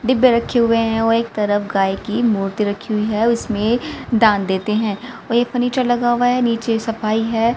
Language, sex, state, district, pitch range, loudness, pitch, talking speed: Hindi, female, Haryana, Rohtak, 210-235 Hz, -18 LUFS, 225 Hz, 205 wpm